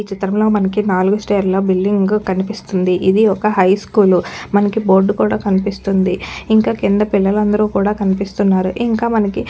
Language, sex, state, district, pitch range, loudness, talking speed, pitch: Telugu, female, Telangana, Nalgonda, 190-210 Hz, -15 LUFS, 150 wpm, 200 Hz